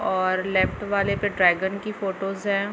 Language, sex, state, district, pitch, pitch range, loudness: Hindi, female, Chhattisgarh, Bilaspur, 195 Hz, 190-200 Hz, -23 LUFS